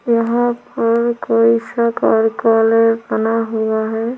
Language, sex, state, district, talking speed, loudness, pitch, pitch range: Hindi, female, Chhattisgarh, Korba, 115 wpm, -16 LUFS, 230 Hz, 225-235 Hz